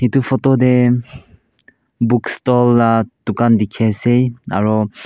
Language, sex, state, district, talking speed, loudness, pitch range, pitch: Nagamese, male, Nagaland, Kohima, 105 wpm, -15 LUFS, 115-125 Hz, 120 Hz